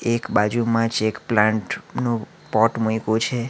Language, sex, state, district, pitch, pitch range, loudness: Gujarati, male, Gujarat, Valsad, 115 Hz, 110-120 Hz, -21 LUFS